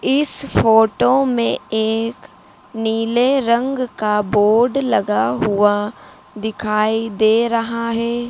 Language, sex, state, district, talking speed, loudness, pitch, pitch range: Hindi, female, Madhya Pradesh, Dhar, 100 wpm, -17 LUFS, 225 Hz, 215-245 Hz